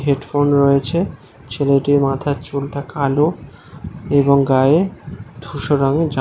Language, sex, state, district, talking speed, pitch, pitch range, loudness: Bengali, male, West Bengal, Malda, 125 wpm, 140 Hz, 140-145 Hz, -17 LUFS